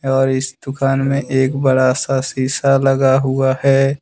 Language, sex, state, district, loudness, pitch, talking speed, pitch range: Hindi, male, Jharkhand, Deoghar, -16 LUFS, 135 Hz, 165 wpm, 130-135 Hz